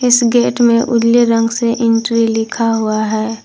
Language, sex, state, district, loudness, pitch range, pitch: Hindi, female, Jharkhand, Garhwa, -13 LUFS, 225-235 Hz, 230 Hz